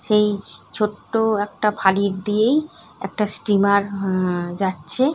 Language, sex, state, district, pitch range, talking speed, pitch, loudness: Bengali, female, West Bengal, North 24 Parganas, 195-215 Hz, 130 wpm, 205 Hz, -21 LUFS